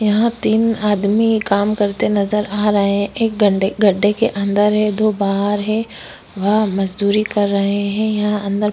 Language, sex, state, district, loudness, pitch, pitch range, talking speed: Hindi, female, Chhattisgarh, Korba, -17 LUFS, 205 Hz, 200-215 Hz, 170 wpm